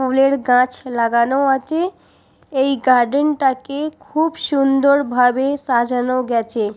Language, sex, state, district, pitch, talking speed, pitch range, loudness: Bengali, female, West Bengal, Purulia, 265 Hz, 135 wpm, 245-280 Hz, -17 LUFS